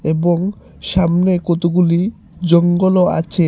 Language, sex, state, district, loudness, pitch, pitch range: Bengali, male, Tripura, Unakoti, -15 LUFS, 175 Hz, 170-185 Hz